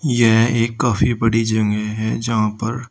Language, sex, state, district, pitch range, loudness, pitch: Hindi, male, Uttar Pradesh, Shamli, 110-115 Hz, -18 LUFS, 115 Hz